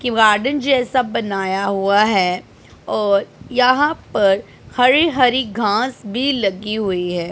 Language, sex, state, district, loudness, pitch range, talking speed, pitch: Hindi, female, Punjab, Pathankot, -17 LUFS, 195-255 Hz, 130 wpm, 215 Hz